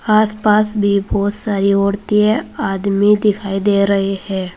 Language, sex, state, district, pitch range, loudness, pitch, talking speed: Hindi, female, Uttar Pradesh, Saharanpur, 200-210 Hz, -16 LUFS, 200 Hz, 130 wpm